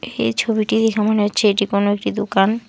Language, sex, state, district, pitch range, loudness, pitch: Bengali, female, West Bengal, Alipurduar, 200-220 Hz, -18 LUFS, 210 Hz